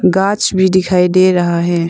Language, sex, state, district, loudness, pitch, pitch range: Hindi, female, Arunachal Pradesh, Longding, -12 LUFS, 185 Hz, 175-190 Hz